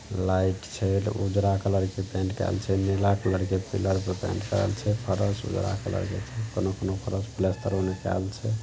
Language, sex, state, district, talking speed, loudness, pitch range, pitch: Maithili, male, Bihar, Saharsa, 165 wpm, -28 LUFS, 95-105 Hz, 95 Hz